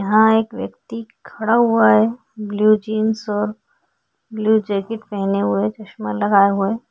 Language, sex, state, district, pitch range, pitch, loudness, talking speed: Hindi, female, Maharashtra, Chandrapur, 205-220 Hz, 215 Hz, -18 LUFS, 140 wpm